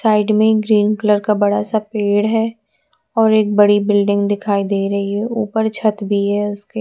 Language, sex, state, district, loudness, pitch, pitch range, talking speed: Hindi, female, Punjab, Kapurthala, -16 LUFS, 210 Hz, 205-220 Hz, 200 wpm